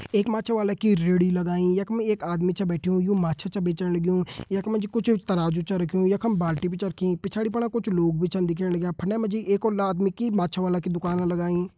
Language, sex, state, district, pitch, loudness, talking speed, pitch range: Hindi, male, Uttarakhand, Tehri Garhwal, 185 Hz, -25 LUFS, 240 wpm, 175-210 Hz